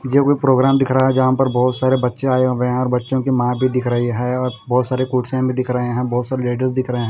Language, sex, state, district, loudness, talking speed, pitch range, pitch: Hindi, male, Maharashtra, Gondia, -17 LUFS, 295 wpm, 125-130 Hz, 130 Hz